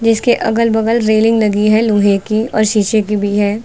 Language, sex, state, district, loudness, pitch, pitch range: Hindi, female, Uttar Pradesh, Lucknow, -13 LUFS, 215 Hz, 210-225 Hz